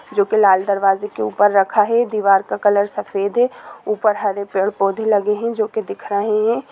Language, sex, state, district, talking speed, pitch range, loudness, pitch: Hindi, female, Bihar, Gopalganj, 215 wpm, 200-215 Hz, -17 LUFS, 205 Hz